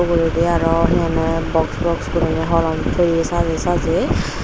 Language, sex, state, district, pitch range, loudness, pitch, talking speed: Chakma, female, Tripura, Unakoti, 165-170 Hz, -18 LUFS, 165 Hz, 150 wpm